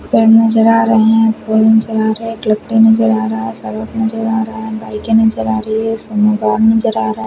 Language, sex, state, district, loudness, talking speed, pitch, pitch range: Hindi, male, Odisha, Khordha, -13 LUFS, 245 wpm, 220 Hz, 215-225 Hz